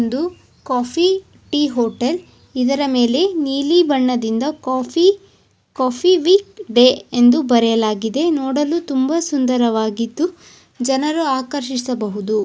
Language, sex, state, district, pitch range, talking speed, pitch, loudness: Kannada, female, Karnataka, Chamarajanagar, 245-325 Hz, 90 wpm, 265 Hz, -17 LUFS